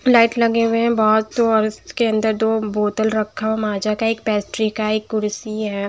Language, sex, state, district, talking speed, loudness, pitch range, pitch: Hindi, female, Bihar, Patna, 225 wpm, -19 LUFS, 215-225 Hz, 220 Hz